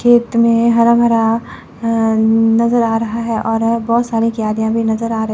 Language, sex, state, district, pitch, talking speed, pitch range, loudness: Hindi, female, Chandigarh, Chandigarh, 230 Hz, 190 wpm, 225-230 Hz, -14 LUFS